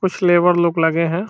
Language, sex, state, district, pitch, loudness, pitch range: Hindi, male, Bihar, Saran, 175 Hz, -16 LUFS, 165-180 Hz